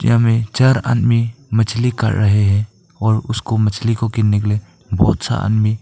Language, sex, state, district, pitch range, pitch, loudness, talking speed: Hindi, male, Arunachal Pradesh, Papum Pare, 105-115 Hz, 110 Hz, -16 LUFS, 185 wpm